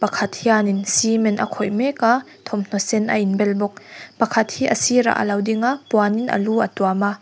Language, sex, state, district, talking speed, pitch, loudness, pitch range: Mizo, female, Mizoram, Aizawl, 225 wpm, 210 Hz, -19 LUFS, 205-230 Hz